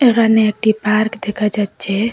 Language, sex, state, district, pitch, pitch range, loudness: Bengali, female, Assam, Hailakandi, 215 Hz, 210-220 Hz, -16 LUFS